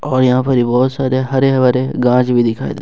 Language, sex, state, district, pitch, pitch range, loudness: Hindi, male, Jharkhand, Ranchi, 130 Hz, 125-130 Hz, -14 LUFS